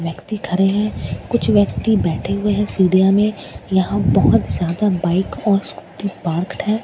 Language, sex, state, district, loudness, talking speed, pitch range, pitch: Hindi, female, Bihar, Katihar, -18 LUFS, 150 wpm, 185-205 Hz, 195 Hz